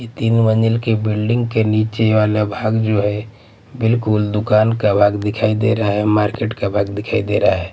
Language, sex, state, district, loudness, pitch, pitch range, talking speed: Hindi, male, Bihar, Patna, -17 LUFS, 110 Hz, 105-110 Hz, 200 wpm